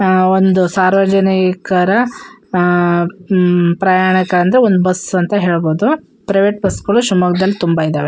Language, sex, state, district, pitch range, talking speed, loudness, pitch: Kannada, female, Karnataka, Shimoga, 180-195 Hz, 135 wpm, -13 LUFS, 185 Hz